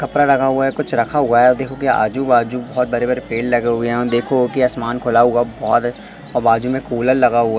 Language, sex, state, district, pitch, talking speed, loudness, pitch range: Hindi, male, Madhya Pradesh, Katni, 125 Hz, 245 wpm, -16 LUFS, 120-130 Hz